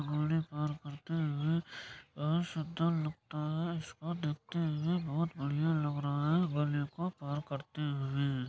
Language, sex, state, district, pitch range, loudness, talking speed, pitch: Maithili, male, Bihar, Supaul, 145-165 Hz, -35 LUFS, 90 wpm, 150 Hz